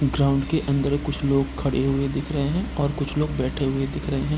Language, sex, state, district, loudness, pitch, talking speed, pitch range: Hindi, male, Bihar, Gopalganj, -24 LUFS, 140 Hz, 260 wpm, 135-145 Hz